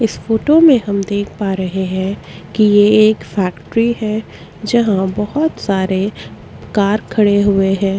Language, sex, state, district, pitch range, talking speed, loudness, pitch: Hindi, female, Chhattisgarh, Korba, 195-220 Hz, 150 wpm, -15 LUFS, 205 Hz